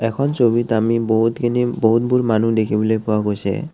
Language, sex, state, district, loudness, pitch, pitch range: Assamese, male, Assam, Kamrup Metropolitan, -18 LUFS, 115 Hz, 110-120 Hz